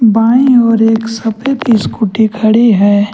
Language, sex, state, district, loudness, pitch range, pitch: Hindi, male, Jharkhand, Ranchi, -10 LUFS, 220-235 Hz, 225 Hz